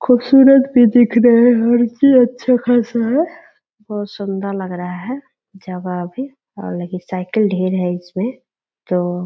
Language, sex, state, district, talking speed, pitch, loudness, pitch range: Hindi, male, Bihar, Purnia, 160 wpm, 230 Hz, -15 LUFS, 185-250 Hz